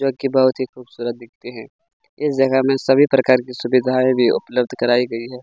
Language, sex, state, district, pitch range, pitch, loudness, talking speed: Hindi, male, Chhattisgarh, Kabirdham, 120-135 Hz, 130 Hz, -18 LUFS, 200 wpm